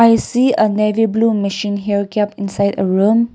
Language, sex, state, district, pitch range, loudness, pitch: English, female, Nagaland, Kohima, 200-225 Hz, -16 LUFS, 210 Hz